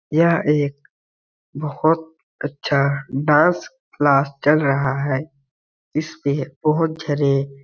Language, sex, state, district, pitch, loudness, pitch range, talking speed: Hindi, male, Chhattisgarh, Balrampur, 145 Hz, -20 LUFS, 140-155 Hz, 85 wpm